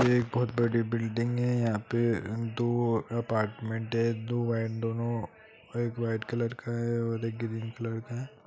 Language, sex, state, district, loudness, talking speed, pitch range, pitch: Hindi, male, Jharkhand, Jamtara, -31 LUFS, 170 wpm, 115-120 Hz, 115 Hz